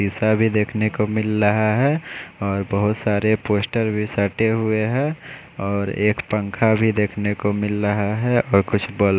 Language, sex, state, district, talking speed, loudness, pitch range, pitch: Hindi, male, Odisha, Khordha, 185 wpm, -20 LUFS, 100-110 Hz, 105 Hz